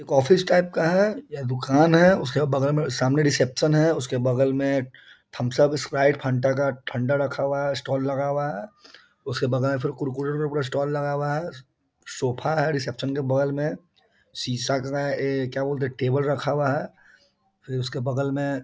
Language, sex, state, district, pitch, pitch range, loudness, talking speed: Hindi, male, Bihar, Muzaffarpur, 140 Hz, 135-145 Hz, -24 LUFS, 200 wpm